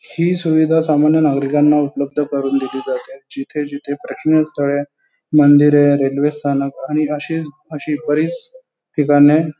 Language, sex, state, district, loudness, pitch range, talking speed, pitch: Marathi, male, Maharashtra, Pune, -16 LUFS, 145-160 Hz, 130 wpm, 150 Hz